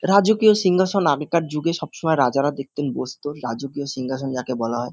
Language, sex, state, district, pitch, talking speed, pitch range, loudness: Bengali, male, West Bengal, North 24 Parganas, 145 Hz, 170 wpm, 135-170 Hz, -21 LUFS